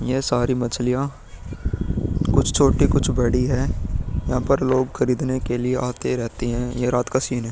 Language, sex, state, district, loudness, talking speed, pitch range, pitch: Hindi, male, Uttar Pradesh, Muzaffarnagar, -22 LUFS, 175 wpm, 120-130 Hz, 125 Hz